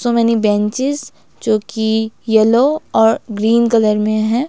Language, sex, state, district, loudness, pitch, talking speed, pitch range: Hindi, female, Himachal Pradesh, Shimla, -15 LUFS, 225 Hz, 145 wpm, 215-235 Hz